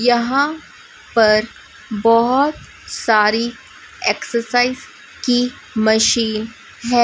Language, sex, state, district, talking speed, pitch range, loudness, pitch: Hindi, female, Chhattisgarh, Raipur, 70 wpm, 220-245 Hz, -17 LUFS, 235 Hz